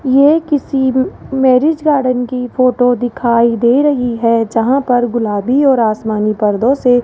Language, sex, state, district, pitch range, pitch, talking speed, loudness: Hindi, male, Rajasthan, Jaipur, 235-265 Hz, 250 Hz, 155 wpm, -13 LUFS